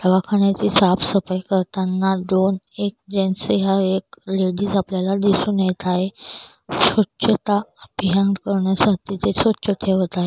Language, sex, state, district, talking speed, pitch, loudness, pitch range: Marathi, female, Maharashtra, Solapur, 115 wpm, 195 Hz, -19 LUFS, 185-200 Hz